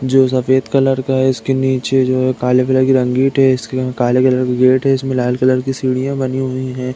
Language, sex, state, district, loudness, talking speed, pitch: Hindi, male, Uttar Pradesh, Deoria, -15 LUFS, 215 wpm, 130 Hz